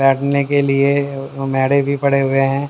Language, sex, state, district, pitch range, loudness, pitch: Hindi, male, Haryana, Jhajjar, 135-140 Hz, -16 LUFS, 140 Hz